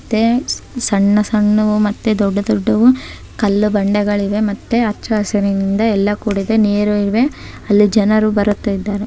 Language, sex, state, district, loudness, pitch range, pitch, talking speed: Kannada, male, Karnataka, Bellary, -15 LUFS, 205-220 Hz, 210 Hz, 125 wpm